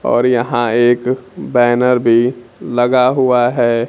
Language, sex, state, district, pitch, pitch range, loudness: Hindi, male, Bihar, Kaimur, 120 Hz, 120-125 Hz, -14 LUFS